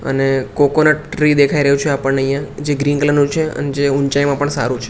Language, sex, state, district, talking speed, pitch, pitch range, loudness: Gujarati, male, Gujarat, Gandhinagar, 230 wpm, 140 Hz, 135-145 Hz, -15 LUFS